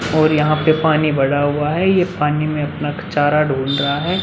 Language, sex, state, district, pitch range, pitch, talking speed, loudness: Hindi, male, Uttar Pradesh, Muzaffarnagar, 145-155 Hz, 150 Hz, 215 wpm, -17 LUFS